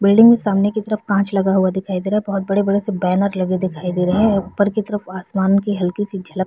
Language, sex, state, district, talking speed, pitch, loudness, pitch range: Hindi, female, Bihar, Vaishali, 280 wpm, 200 Hz, -18 LUFS, 185-205 Hz